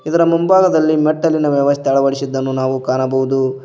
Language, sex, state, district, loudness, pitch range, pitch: Kannada, male, Karnataka, Koppal, -15 LUFS, 130-155 Hz, 140 Hz